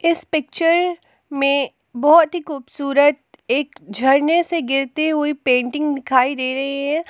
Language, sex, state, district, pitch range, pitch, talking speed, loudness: Hindi, female, Jharkhand, Palamu, 270-320 Hz, 290 Hz, 135 wpm, -18 LUFS